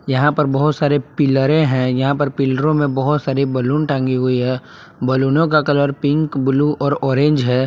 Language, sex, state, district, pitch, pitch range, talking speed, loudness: Hindi, male, Jharkhand, Palamu, 140 Hz, 130-150 Hz, 190 wpm, -17 LUFS